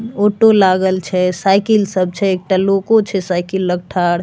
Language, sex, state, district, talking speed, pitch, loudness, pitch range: Maithili, female, Bihar, Begusarai, 185 wpm, 190 Hz, -15 LUFS, 180-200 Hz